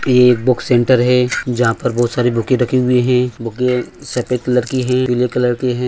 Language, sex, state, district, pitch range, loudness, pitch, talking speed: Hindi, male, Chhattisgarh, Bilaspur, 120-125 Hz, -15 LUFS, 125 Hz, 225 wpm